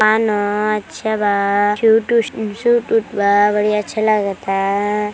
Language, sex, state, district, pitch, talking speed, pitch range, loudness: Hindi, female, Uttar Pradesh, Deoria, 210 Hz, 130 wpm, 205-220 Hz, -16 LUFS